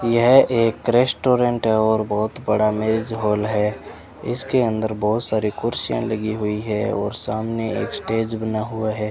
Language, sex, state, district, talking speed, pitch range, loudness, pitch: Hindi, male, Rajasthan, Bikaner, 165 wpm, 110-115 Hz, -20 LUFS, 110 Hz